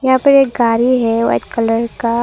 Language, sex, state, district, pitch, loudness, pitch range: Hindi, female, Arunachal Pradesh, Longding, 235 Hz, -14 LUFS, 230-260 Hz